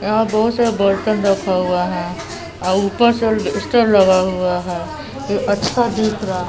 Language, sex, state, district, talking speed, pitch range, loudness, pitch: Hindi, female, Bihar, West Champaran, 165 wpm, 185-220 Hz, -17 LUFS, 200 Hz